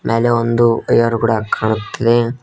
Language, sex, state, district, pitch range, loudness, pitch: Kannada, male, Karnataka, Koppal, 115-120 Hz, -15 LUFS, 115 Hz